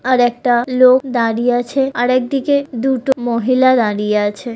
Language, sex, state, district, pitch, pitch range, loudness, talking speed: Bengali, female, West Bengal, Kolkata, 245 Hz, 235-260 Hz, -15 LUFS, 145 wpm